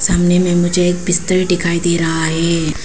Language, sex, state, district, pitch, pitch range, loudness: Hindi, female, Arunachal Pradesh, Papum Pare, 175 Hz, 170-180 Hz, -14 LUFS